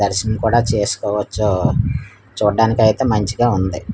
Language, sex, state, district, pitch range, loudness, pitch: Telugu, male, Andhra Pradesh, Manyam, 100-120 Hz, -17 LUFS, 110 Hz